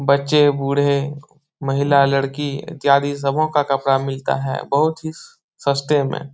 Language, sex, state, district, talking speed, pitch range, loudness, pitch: Hindi, male, Bihar, Jahanabad, 140 wpm, 135-145 Hz, -19 LUFS, 140 Hz